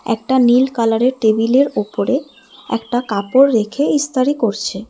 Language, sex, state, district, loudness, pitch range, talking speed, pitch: Bengali, female, West Bengal, Alipurduar, -16 LUFS, 225-265 Hz, 120 wpm, 245 Hz